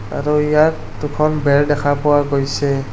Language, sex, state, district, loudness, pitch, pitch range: Assamese, male, Assam, Kamrup Metropolitan, -16 LUFS, 145 Hz, 140-150 Hz